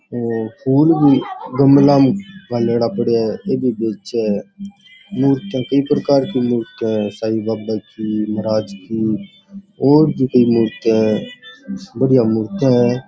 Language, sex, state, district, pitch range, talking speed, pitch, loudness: Rajasthani, male, Rajasthan, Churu, 110-145 Hz, 140 wpm, 125 Hz, -16 LUFS